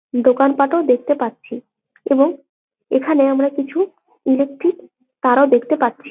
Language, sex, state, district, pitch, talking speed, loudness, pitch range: Bengali, female, West Bengal, Jalpaiguri, 275 Hz, 110 wpm, -17 LUFS, 255-290 Hz